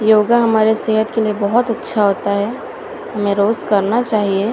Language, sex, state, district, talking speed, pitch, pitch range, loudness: Hindi, female, Chhattisgarh, Raipur, 185 wpm, 220 Hz, 205-230 Hz, -16 LUFS